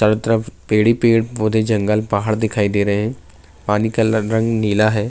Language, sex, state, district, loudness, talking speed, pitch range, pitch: Urdu, male, Bihar, Saharsa, -17 LUFS, 200 wpm, 105-110 Hz, 110 Hz